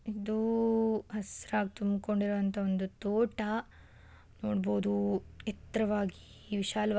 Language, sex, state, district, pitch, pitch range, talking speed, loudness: Kannada, female, Karnataka, Shimoga, 205 Hz, 190-215 Hz, 85 wpm, -33 LUFS